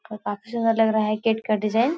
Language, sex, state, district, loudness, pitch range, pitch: Hindi, female, Bihar, Supaul, -23 LUFS, 215-225 Hz, 220 Hz